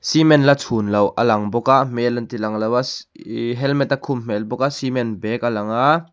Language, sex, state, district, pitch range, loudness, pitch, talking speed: Mizo, male, Mizoram, Aizawl, 110-140 Hz, -19 LUFS, 120 Hz, 255 wpm